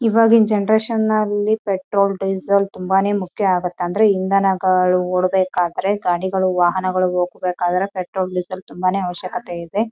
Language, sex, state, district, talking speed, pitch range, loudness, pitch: Kannada, female, Karnataka, Raichur, 80 wpm, 180-205 Hz, -18 LUFS, 190 Hz